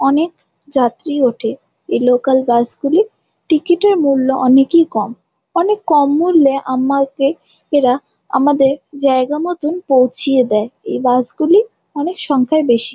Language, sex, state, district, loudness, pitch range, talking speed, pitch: Bengali, female, West Bengal, Jalpaiguri, -15 LUFS, 255-315 Hz, 135 wpm, 275 Hz